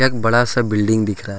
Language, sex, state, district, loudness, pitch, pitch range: Hindi, male, Jharkhand, Ranchi, -17 LUFS, 110 Hz, 105-120 Hz